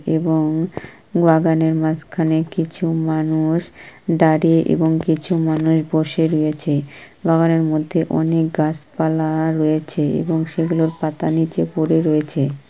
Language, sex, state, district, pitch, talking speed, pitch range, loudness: Bengali, female, West Bengal, Purulia, 160 Hz, 105 wpm, 155-165 Hz, -18 LUFS